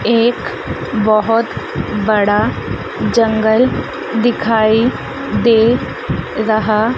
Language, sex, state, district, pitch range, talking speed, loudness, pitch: Hindi, female, Madhya Pradesh, Dhar, 215-235 Hz, 60 wpm, -15 LUFS, 225 Hz